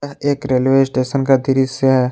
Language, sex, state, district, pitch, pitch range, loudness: Hindi, male, Jharkhand, Palamu, 135 Hz, 130-135 Hz, -16 LUFS